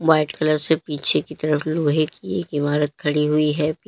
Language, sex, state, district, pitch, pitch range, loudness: Hindi, female, Uttar Pradesh, Lalitpur, 155 Hz, 150-155 Hz, -20 LUFS